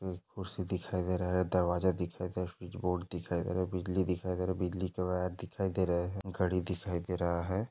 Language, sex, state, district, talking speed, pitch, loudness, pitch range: Hindi, male, Maharashtra, Aurangabad, 225 wpm, 90 Hz, -34 LUFS, 90-95 Hz